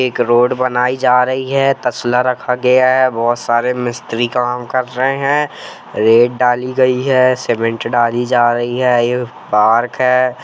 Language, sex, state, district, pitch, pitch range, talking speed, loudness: Hindi, male, Jharkhand, Jamtara, 125 Hz, 120-130 Hz, 165 wpm, -14 LUFS